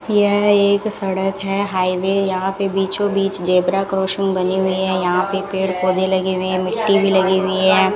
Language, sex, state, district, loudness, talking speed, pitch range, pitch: Hindi, female, Rajasthan, Bikaner, -17 LUFS, 195 wpm, 185-195 Hz, 190 Hz